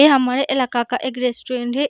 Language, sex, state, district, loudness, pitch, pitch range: Hindi, female, Bihar, Gaya, -20 LUFS, 255 Hz, 250-275 Hz